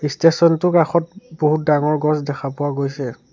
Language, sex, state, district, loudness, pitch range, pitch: Assamese, male, Assam, Sonitpur, -18 LUFS, 145-165 Hz, 150 Hz